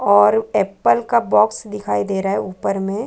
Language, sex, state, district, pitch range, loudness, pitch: Hindi, female, Chhattisgarh, Bilaspur, 195-215 Hz, -18 LUFS, 205 Hz